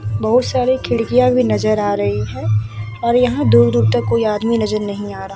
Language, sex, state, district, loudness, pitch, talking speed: Hindi, female, Bihar, Vaishali, -16 LUFS, 190 Hz, 210 wpm